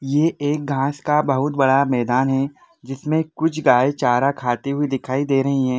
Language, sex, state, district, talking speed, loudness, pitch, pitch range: Hindi, male, Jharkhand, Sahebganj, 185 wpm, -20 LUFS, 140 Hz, 135-150 Hz